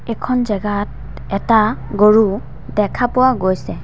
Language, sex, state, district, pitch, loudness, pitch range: Assamese, female, Assam, Sonitpur, 210 Hz, -16 LUFS, 200-235 Hz